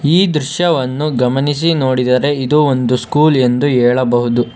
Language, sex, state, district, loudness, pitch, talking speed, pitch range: Kannada, male, Karnataka, Bangalore, -13 LUFS, 135 Hz, 120 wpm, 125-150 Hz